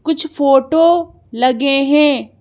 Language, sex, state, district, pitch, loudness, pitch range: Hindi, female, Madhya Pradesh, Bhopal, 290 Hz, -13 LUFS, 270-320 Hz